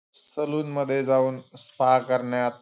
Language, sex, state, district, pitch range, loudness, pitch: Marathi, male, Maharashtra, Aurangabad, 125-135 Hz, -25 LUFS, 130 Hz